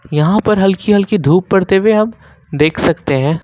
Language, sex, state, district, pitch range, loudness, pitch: Hindi, male, Jharkhand, Ranchi, 155-210 Hz, -13 LUFS, 190 Hz